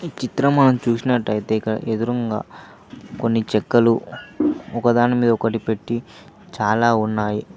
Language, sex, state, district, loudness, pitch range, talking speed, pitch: Telugu, male, Telangana, Mahabubabad, -20 LUFS, 110-120 Hz, 105 wpm, 115 Hz